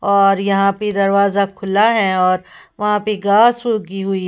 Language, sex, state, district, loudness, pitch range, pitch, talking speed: Hindi, female, Uttar Pradesh, Lalitpur, -15 LUFS, 195-210 Hz, 200 Hz, 170 wpm